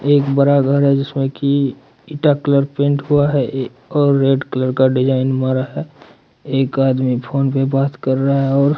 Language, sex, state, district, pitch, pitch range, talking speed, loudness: Hindi, male, Bihar, Katihar, 135 Hz, 130-140 Hz, 185 wpm, -16 LUFS